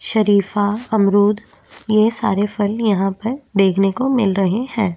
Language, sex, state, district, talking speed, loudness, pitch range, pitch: Hindi, female, Uttarakhand, Tehri Garhwal, 145 wpm, -17 LUFS, 195-220 Hz, 210 Hz